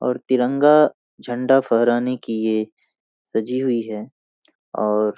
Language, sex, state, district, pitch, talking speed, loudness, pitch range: Hindi, male, Bihar, Saharsa, 120 Hz, 125 wpm, -20 LUFS, 110-130 Hz